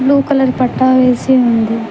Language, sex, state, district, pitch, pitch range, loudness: Telugu, female, Telangana, Mahabubabad, 255 Hz, 240-265 Hz, -12 LUFS